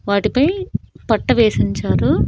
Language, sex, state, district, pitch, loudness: Telugu, female, Andhra Pradesh, Annamaya, 200 Hz, -17 LUFS